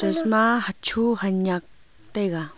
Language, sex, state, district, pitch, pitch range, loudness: Wancho, female, Arunachal Pradesh, Longding, 195 Hz, 165-220 Hz, -20 LUFS